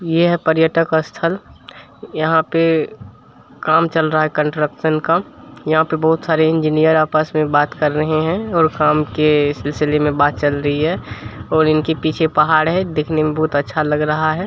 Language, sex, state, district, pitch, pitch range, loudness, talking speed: Hindi, male, Bihar, Supaul, 155 Hz, 150-160 Hz, -16 LUFS, 185 wpm